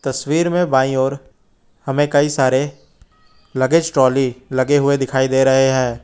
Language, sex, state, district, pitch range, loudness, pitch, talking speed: Hindi, male, Uttar Pradesh, Lucknow, 130-140 Hz, -16 LUFS, 135 Hz, 150 wpm